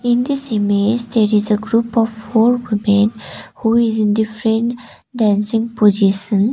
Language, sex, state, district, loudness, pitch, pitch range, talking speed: English, female, Sikkim, Gangtok, -16 LUFS, 220 Hz, 210-235 Hz, 145 wpm